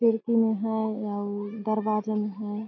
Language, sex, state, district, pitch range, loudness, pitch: Chhattisgarhi, female, Chhattisgarh, Jashpur, 210-220 Hz, -27 LUFS, 215 Hz